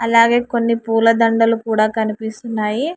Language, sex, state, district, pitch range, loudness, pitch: Telugu, female, Telangana, Hyderabad, 220-230 Hz, -16 LUFS, 230 Hz